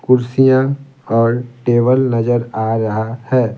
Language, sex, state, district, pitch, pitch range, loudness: Hindi, male, Bihar, Patna, 120 Hz, 115-130 Hz, -15 LUFS